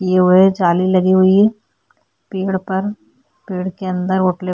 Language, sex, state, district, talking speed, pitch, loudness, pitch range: Hindi, female, Uttarakhand, Tehri Garhwal, 170 wpm, 185 Hz, -15 LUFS, 185-190 Hz